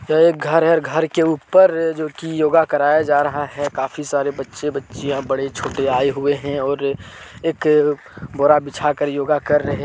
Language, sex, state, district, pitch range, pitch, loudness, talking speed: Hindi, male, Jharkhand, Deoghar, 140-155 Hz, 145 Hz, -18 LUFS, 185 wpm